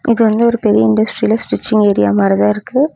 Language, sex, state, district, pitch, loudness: Tamil, female, Tamil Nadu, Namakkal, 215 Hz, -13 LUFS